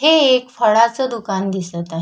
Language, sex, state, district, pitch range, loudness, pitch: Marathi, female, Maharashtra, Chandrapur, 190-260 Hz, -16 LUFS, 230 Hz